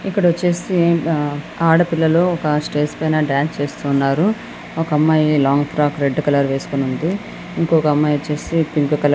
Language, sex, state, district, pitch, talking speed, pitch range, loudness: Telugu, female, Andhra Pradesh, Anantapur, 150 Hz, 150 wpm, 145-165 Hz, -17 LUFS